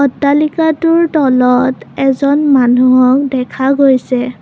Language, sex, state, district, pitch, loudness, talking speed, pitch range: Assamese, female, Assam, Kamrup Metropolitan, 270 Hz, -11 LUFS, 80 wpm, 255-290 Hz